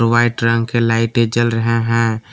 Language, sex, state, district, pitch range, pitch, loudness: Hindi, male, Jharkhand, Palamu, 115-120 Hz, 115 Hz, -16 LUFS